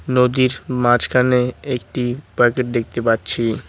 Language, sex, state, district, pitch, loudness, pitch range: Bengali, male, West Bengal, Cooch Behar, 125 Hz, -18 LUFS, 120-125 Hz